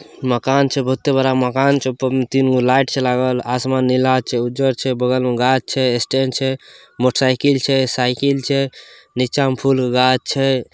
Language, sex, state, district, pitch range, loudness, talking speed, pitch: Maithili, male, Bihar, Samastipur, 125-135 Hz, -17 LUFS, 190 wpm, 130 Hz